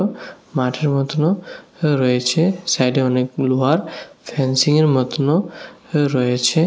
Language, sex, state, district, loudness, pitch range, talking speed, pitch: Bengali, male, Tripura, West Tripura, -18 LUFS, 130-165 Hz, 80 wpm, 145 Hz